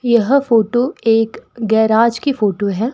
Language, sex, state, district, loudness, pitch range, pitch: Hindi, female, Rajasthan, Bikaner, -15 LUFS, 220-240 Hz, 230 Hz